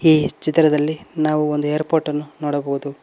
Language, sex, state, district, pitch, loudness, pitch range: Kannada, male, Karnataka, Koppal, 150 Hz, -19 LUFS, 150-155 Hz